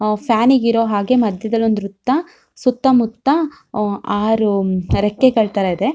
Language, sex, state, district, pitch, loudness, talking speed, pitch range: Kannada, female, Karnataka, Shimoga, 225 Hz, -17 LUFS, 130 wpm, 205-255 Hz